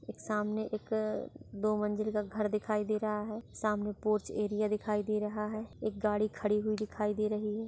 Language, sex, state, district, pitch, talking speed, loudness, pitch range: Hindi, female, Maharashtra, Nagpur, 215 Hz, 205 wpm, -34 LUFS, 210-215 Hz